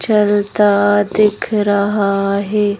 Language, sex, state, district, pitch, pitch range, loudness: Hindi, female, Madhya Pradesh, Bhopal, 205 Hz, 200-210 Hz, -14 LUFS